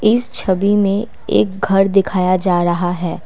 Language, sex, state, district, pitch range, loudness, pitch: Hindi, female, Assam, Kamrup Metropolitan, 180-205 Hz, -16 LUFS, 195 Hz